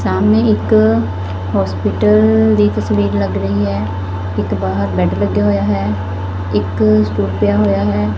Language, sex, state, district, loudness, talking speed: Punjabi, female, Punjab, Fazilka, -15 LUFS, 140 wpm